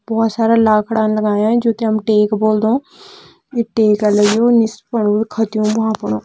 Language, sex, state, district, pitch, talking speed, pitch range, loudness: Kumaoni, female, Uttarakhand, Tehri Garhwal, 220 Hz, 155 wpm, 215-225 Hz, -15 LUFS